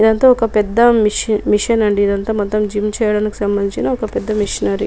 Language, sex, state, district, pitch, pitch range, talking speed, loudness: Telugu, female, Telangana, Nalgonda, 210 Hz, 205-220 Hz, 175 wpm, -15 LUFS